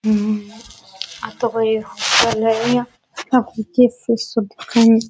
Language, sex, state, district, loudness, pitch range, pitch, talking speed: Rajasthani, female, Rajasthan, Nagaur, -18 LUFS, 215-235 Hz, 225 Hz, 130 wpm